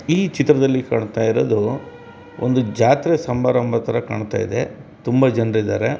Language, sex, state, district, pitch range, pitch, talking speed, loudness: Kannada, male, Karnataka, Bellary, 115-140 Hz, 125 Hz, 130 wpm, -19 LUFS